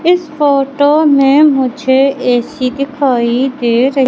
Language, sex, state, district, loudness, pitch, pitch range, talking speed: Hindi, female, Madhya Pradesh, Katni, -11 LUFS, 270 Hz, 255-285 Hz, 120 wpm